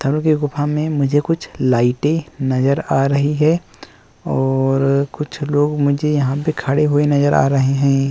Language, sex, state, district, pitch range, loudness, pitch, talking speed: Hindi, male, Uttar Pradesh, Muzaffarnagar, 135-150 Hz, -17 LUFS, 145 Hz, 140 wpm